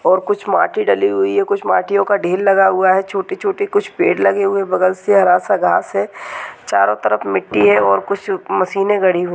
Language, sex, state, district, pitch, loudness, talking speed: Hindi, female, Uttarakhand, Tehri Garhwal, 195 Hz, -15 LUFS, 220 wpm